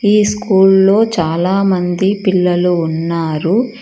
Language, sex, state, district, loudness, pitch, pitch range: Telugu, female, Karnataka, Bangalore, -13 LUFS, 190 Hz, 175-205 Hz